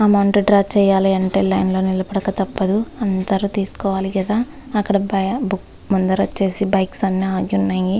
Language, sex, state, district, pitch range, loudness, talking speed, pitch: Telugu, female, Andhra Pradesh, Visakhapatnam, 190-205 Hz, -18 LUFS, 140 wpm, 195 Hz